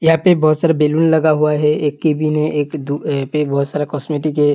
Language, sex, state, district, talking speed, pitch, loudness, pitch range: Hindi, male, Uttar Pradesh, Hamirpur, 225 wpm, 150 Hz, -16 LUFS, 150-155 Hz